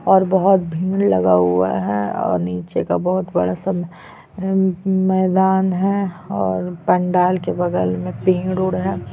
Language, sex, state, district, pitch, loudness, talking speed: Hindi, female, Chhattisgarh, Sukma, 180 Hz, -18 LUFS, 145 wpm